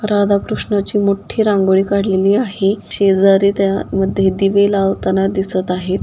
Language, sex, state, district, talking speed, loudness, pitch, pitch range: Marathi, female, Maharashtra, Dhule, 130 wpm, -15 LUFS, 195 Hz, 195-200 Hz